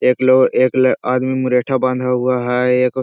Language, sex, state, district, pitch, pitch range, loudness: Hindi, male, Bihar, Jahanabad, 125 Hz, 125-130 Hz, -15 LUFS